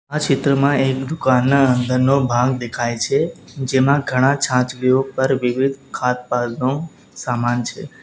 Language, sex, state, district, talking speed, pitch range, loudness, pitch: Gujarati, male, Gujarat, Valsad, 120 wpm, 125-135 Hz, -18 LUFS, 130 Hz